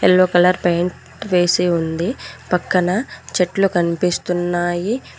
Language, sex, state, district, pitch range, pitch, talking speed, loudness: Telugu, female, Telangana, Mahabubabad, 175-185 Hz, 180 Hz, 90 wpm, -18 LUFS